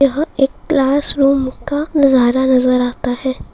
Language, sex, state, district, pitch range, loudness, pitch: Hindi, female, Bihar, Saharsa, 255-285 Hz, -15 LUFS, 270 Hz